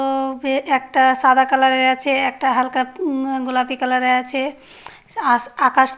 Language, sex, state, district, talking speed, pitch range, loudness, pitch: Bengali, female, West Bengal, North 24 Parganas, 170 wpm, 255-270 Hz, -18 LUFS, 265 Hz